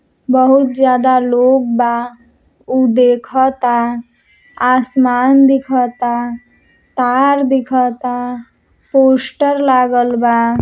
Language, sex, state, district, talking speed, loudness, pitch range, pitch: Bhojpuri, male, Uttar Pradesh, Deoria, 75 wpm, -13 LUFS, 245-260 Hz, 250 Hz